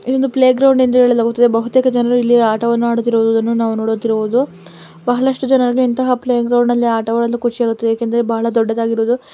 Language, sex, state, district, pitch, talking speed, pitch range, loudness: Kannada, female, Karnataka, Dakshina Kannada, 235 Hz, 165 wpm, 230-250 Hz, -15 LUFS